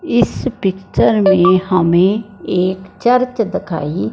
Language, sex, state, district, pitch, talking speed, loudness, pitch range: Hindi, male, Punjab, Fazilka, 190 Hz, 100 wpm, -15 LUFS, 180-210 Hz